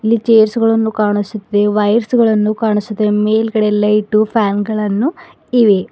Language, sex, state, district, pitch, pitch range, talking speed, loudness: Kannada, female, Karnataka, Bidar, 215 Hz, 210-225 Hz, 120 wpm, -14 LUFS